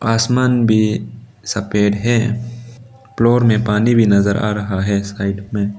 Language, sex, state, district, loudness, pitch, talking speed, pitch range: Hindi, male, Arunachal Pradesh, Lower Dibang Valley, -16 LUFS, 110 Hz, 155 wpm, 100-120 Hz